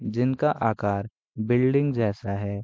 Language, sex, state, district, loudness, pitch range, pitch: Hindi, male, Bihar, Gopalganj, -25 LUFS, 100-125 Hz, 110 Hz